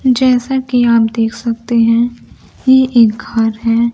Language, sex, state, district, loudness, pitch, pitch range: Hindi, female, Bihar, Kaimur, -13 LUFS, 235 Hz, 230-250 Hz